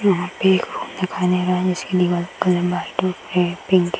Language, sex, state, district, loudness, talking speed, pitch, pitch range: Hindi, female, Uttar Pradesh, Hamirpur, -20 LUFS, 60 wpm, 180 Hz, 180-185 Hz